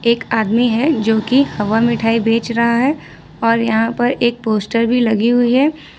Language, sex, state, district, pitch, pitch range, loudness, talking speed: Hindi, female, Jharkhand, Ranchi, 230 Hz, 225-240 Hz, -15 LUFS, 190 wpm